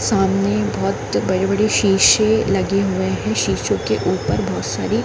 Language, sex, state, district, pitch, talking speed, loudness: Hindi, female, Chhattisgarh, Bilaspur, 185 Hz, 145 wpm, -18 LUFS